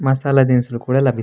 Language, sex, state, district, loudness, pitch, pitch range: Telugu, male, Andhra Pradesh, Anantapur, -16 LUFS, 130 Hz, 125-135 Hz